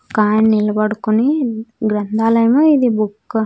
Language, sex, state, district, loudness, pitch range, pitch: Telugu, female, Andhra Pradesh, Sri Satya Sai, -15 LUFS, 215-235 Hz, 220 Hz